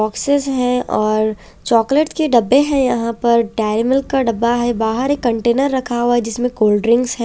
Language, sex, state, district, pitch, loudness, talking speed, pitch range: Hindi, female, Chandigarh, Chandigarh, 240 Hz, -16 LUFS, 200 wpm, 230-260 Hz